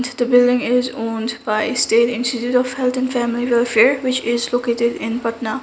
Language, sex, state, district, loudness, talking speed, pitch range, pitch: English, female, Sikkim, Gangtok, -18 LUFS, 190 wpm, 235-250 Hz, 240 Hz